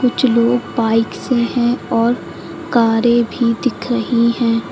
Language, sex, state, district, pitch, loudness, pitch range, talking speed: Hindi, female, Uttar Pradesh, Lucknow, 235 Hz, -16 LUFS, 230-245 Hz, 140 wpm